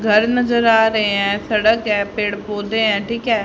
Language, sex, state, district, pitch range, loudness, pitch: Hindi, female, Haryana, Rohtak, 205-225 Hz, -17 LUFS, 215 Hz